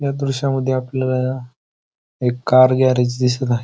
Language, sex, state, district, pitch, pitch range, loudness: Marathi, male, Maharashtra, Pune, 130 Hz, 125-130 Hz, -18 LUFS